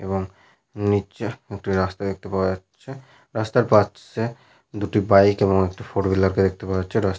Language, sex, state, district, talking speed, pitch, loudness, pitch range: Bengali, male, Jharkhand, Sahebganj, 175 wpm, 100 Hz, -22 LUFS, 95-110 Hz